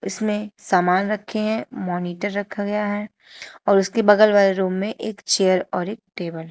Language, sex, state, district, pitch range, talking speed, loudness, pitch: Hindi, female, Uttar Pradesh, Shamli, 185-210 Hz, 185 wpm, -21 LUFS, 205 Hz